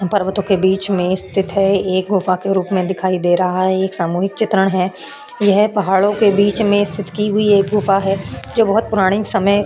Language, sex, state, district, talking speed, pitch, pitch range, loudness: Hindi, female, Maharashtra, Aurangabad, 220 wpm, 195 Hz, 185-205 Hz, -16 LUFS